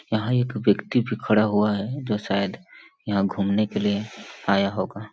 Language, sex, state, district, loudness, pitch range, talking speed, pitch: Hindi, male, Chhattisgarh, Sarguja, -24 LUFS, 100-110 Hz, 175 wpm, 105 Hz